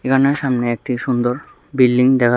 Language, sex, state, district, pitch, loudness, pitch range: Bengali, male, Tripura, West Tripura, 125 Hz, -17 LUFS, 120-135 Hz